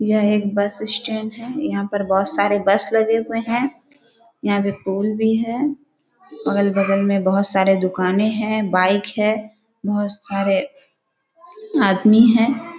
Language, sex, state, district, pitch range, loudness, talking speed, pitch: Hindi, female, Bihar, Kishanganj, 200-230 Hz, -19 LUFS, 140 wpm, 215 Hz